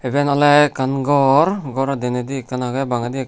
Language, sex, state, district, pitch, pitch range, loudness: Chakma, male, Tripura, Unakoti, 135 Hz, 125-145 Hz, -17 LUFS